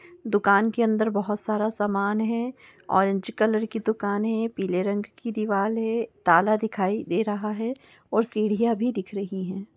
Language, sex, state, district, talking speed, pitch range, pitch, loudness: Hindi, female, Bihar, East Champaran, 170 wpm, 200-225 Hz, 215 Hz, -25 LUFS